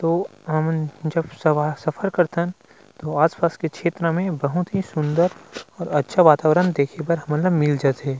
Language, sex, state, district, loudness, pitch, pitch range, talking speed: Chhattisgarhi, male, Chhattisgarh, Rajnandgaon, -21 LUFS, 160 Hz, 150-175 Hz, 175 wpm